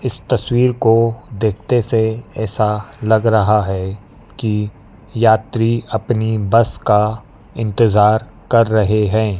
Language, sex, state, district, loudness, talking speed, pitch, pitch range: Hindi, male, Madhya Pradesh, Dhar, -16 LUFS, 115 wpm, 110 Hz, 105-115 Hz